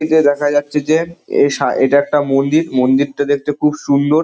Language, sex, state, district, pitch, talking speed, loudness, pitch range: Bengali, male, West Bengal, Dakshin Dinajpur, 145 Hz, 185 wpm, -15 LUFS, 140-155 Hz